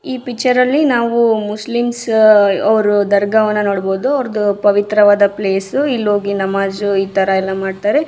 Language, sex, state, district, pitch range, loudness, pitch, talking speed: Kannada, female, Karnataka, Raichur, 200-235 Hz, -14 LUFS, 210 Hz, 110 wpm